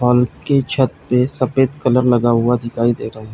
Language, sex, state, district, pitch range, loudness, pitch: Hindi, male, Chhattisgarh, Bilaspur, 120-130 Hz, -16 LUFS, 125 Hz